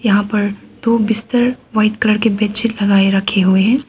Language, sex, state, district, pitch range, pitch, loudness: Hindi, female, Arunachal Pradesh, Papum Pare, 205-230 Hz, 215 Hz, -15 LUFS